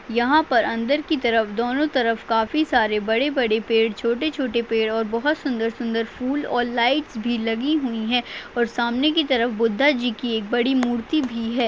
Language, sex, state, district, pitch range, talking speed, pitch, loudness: Hindi, female, Chhattisgarh, Bastar, 230-270 Hz, 180 wpm, 240 Hz, -22 LUFS